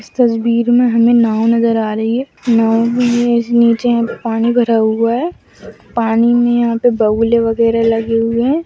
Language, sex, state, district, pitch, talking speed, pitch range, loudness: Hindi, female, Bihar, Madhepura, 235 Hz, 175 wpm, 230-240 Hz, -13 LUFS